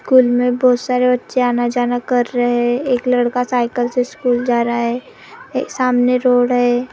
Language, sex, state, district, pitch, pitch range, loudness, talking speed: Hindi, female, Maharashtra, Gondia, 245 Hz, 245-250 Hz, -16 LUFS, 175 wpm